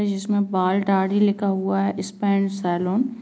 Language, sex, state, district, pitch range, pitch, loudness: Hindi, female, Uttarakhand, Tehri Garhwal, 190-205 Hz, 195 Hz, -22 LUFS